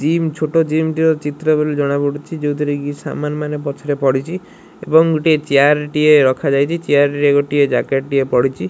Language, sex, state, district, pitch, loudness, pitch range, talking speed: Odia, male, Odisha, Malkangiri, 145 Hz, -16 LUFS, 140-155 Hz, 180 wpm